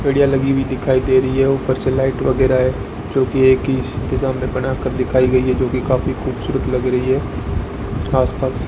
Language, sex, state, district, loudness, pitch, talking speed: Hindi, female, Rajasthan, Bikaner, -17 LUFS, 130 Hz, 230 wpm